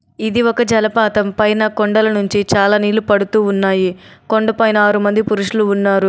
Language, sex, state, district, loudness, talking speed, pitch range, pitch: Telugu, female, Telangana, Adilabad, -14 LUFS, 150 wpm, 200-220 Hz, 210 Hz